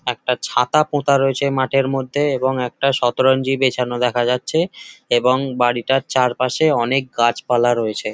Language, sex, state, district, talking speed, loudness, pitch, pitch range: Bengali, male, West Bengal, Jhargram, 140 wpm, -18 LUFS, 130 Hz, 120-135 Hz